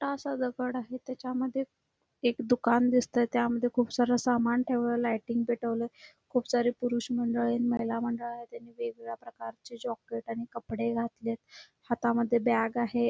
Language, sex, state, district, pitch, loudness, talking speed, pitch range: Marathi, female, Karnataka, Belgaum, 240 Hz, -30 LUFS, 140 wpm, 235-245 Hz